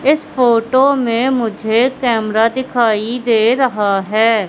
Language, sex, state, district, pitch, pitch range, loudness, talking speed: Hindi, female, Madhya Pradesh, Katni, 235 Hz, 220-260 Hz, -14 LUFS, 120 wpm